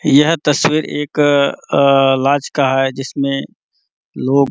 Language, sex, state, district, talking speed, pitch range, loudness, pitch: Hindi, male, Chhattisgarh, Bastar, 120 wpm, 135-145 Hz, -15 LUFS, 140 Hz